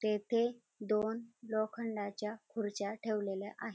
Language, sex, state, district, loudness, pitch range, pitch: Marathi, female, Maharashtra, Dhule, -37 LUFS, 210-230 Hz, 215 Hz